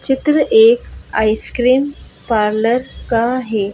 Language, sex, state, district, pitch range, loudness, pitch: Hindi, female, Madhya Pradesh, Bhopal, 220-285 Hz, -15 LUFS, 250 Hz